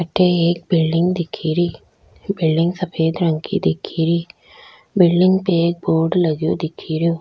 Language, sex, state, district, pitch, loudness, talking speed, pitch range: Rajasthani, female, Rajasthan, Churu, 170 Hz, -18 LUFS, 135 wpm, 160-175 Hz